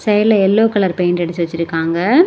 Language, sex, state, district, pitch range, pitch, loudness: Tamil, female, Tamil Nadu, Kanyakumari, 170-210 Hz, 185 Hz, -15 LUFS